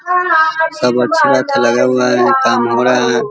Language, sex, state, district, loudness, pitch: Hindi, male, Bihar, Vaishali, -12 LUFS, 125 Hz